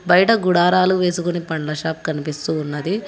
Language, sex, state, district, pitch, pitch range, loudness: Telugu, female, Telangana, Hyderabad, 175 Hz, 155-185 Hz, -19 LUFS